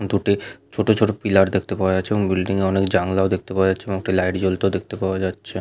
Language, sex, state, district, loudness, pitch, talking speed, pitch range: Bengali, male, West Bengal, Malda, -20 LUFS, 95 Hz, 235 wpm, 95-100 Hz